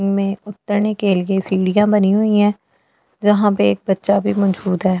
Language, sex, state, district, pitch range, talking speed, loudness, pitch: Hindi, female, Delhi, New Delhi, 190-210 Hz, 180 wpm, -17 LUFS, 200 Hz